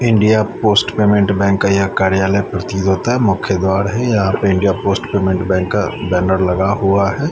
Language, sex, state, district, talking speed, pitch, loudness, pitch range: Hindi, male, Chandigarh, Chandigarh, 195 wpm, 100 Hz, -15 LUFS, 95-105 Hz